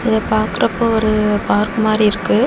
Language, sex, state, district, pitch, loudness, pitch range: Tamil, female, Tamil Nadu, Kanyakumari, 215 Hz, -16 LUFS, 210-225 Hz